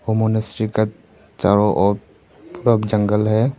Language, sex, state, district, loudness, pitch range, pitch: Hindi, male, Arunachal Pradesh, Papum Pare, -19 LUFS, 105-110 Hz, 110 Hz